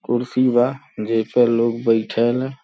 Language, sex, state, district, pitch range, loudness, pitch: Bhojpuri, male, Uttar Pradesh, Gorakhpur, 115-125 Hz, -19 LUFS, 120 Hz